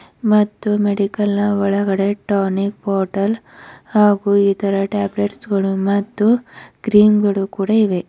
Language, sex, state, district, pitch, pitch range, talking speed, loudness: Kannada, female, Karnataka, Bidar, 205 Hz, 195-210 Hz, 110 wpm, -17 LUFS